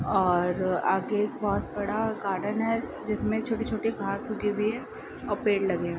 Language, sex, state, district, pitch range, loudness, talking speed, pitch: Hindi, female, Bihar, Araria, 195-220 Hz, -28 LUFS, 170 wpm, 210 Hz